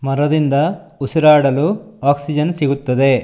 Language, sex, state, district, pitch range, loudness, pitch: Kannada, male, Karnataka, Shimoga, 135-155 Hz, -16 LUFS, 145 Hz